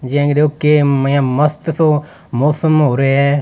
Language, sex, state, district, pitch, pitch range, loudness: Rajasthani, male, Rajasthan, Nagaur, 145 Hz, 140-150 Hz, -14 LUFS